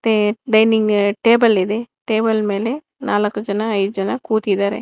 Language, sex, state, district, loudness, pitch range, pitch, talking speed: Kannada, female, Karnataka, Bangalore, -17 LUFS, 205-225 Hz, 220 Hz, 135 wpm